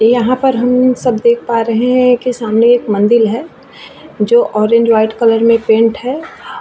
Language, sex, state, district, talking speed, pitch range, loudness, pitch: Hindi, female, Bihar, Vaishali, 180 wpm, 225-250 Hz, -12 LUFS, 235 Hz